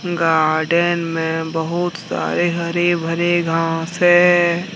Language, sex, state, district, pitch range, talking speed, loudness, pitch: Hindi, male, Jharkhand, Deoghar, 165-175 Hz, 100 wpm, -17 LUFS, 170 Hz